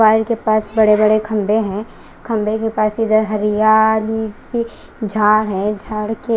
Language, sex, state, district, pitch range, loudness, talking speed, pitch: Hindi, female, Chandigarh, Chandigarh, 215-220 Hz, -16 LUFS, 150 wpm, 215 Hz